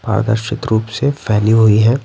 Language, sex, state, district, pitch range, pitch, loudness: Hindi, male, Bihar, Patna, 110-115 Hz, 110 Hz, -14 LUFS